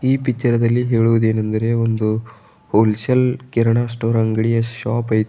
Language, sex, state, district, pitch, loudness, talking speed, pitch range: Kannada, male, Karnataka, Bidar, 115 Hz, -18 LUFS, 135 wpm, 110-120 Hz